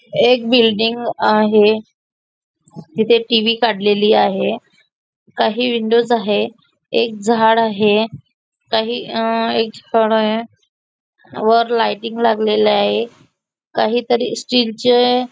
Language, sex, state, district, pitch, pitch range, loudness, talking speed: Marathi, female, Maharashtra, Nagpur, 225 Hz, 215-235 Hz, -16 LUFS, 80 wpm